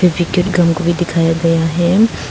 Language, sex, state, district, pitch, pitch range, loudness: Hindi, female, Arunachal Pradesh, Papum Pare, 175 Hz, 165-180 Hz, -14 LUFS